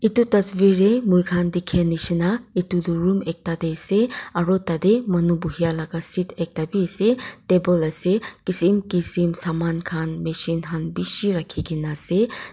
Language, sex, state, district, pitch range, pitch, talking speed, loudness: Nagamese, female, Nagaland, Kohima, 165-195 Hz, 175 Hz, 165 wpm, -20 LUFS